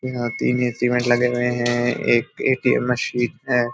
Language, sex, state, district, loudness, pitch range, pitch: Hindi, male, Bihar, Darbhanga, -20 LUFS, 120-125 Hz, 120 Hz